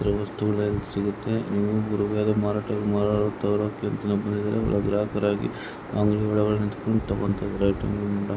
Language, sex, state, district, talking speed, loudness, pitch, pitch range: Kannada, male, Karnataka, Dharwad, 95 wpm, -25 LUFS, 105 Hz, 100-105 Hz